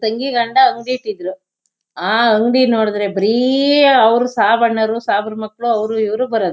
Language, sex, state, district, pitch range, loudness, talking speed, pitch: Kannada, female, Karnataka, Shimoga, 215-245 Hz, -15 LUFS, 130 wpm, 225 Hz